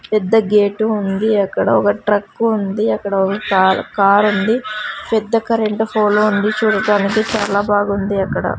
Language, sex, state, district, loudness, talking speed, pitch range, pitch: Telugu, female, Andhra Pradesh, Sri Satya Sai, -16 LUFS, 135 wpm, 200-220 Hz, 210 Hz